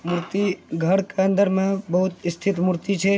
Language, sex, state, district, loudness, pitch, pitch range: Angika, male, Bihar, Begusarai, -22 LUFS, 190 Hz, 175-195 Hz